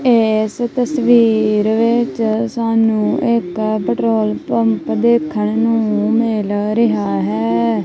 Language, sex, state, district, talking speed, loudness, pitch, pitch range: Punjabi, female, Punjab, Kapurthala, 90 wpm, -15 LUFS, 220 Hz, 210-235 Hz